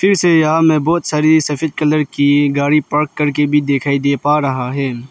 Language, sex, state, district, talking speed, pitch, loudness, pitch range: Hindi, male, Arunachal Pradesh, Lower Dibang Valley, 200 wpm, 150 Hz, -14 LUFS, 140-155 Hz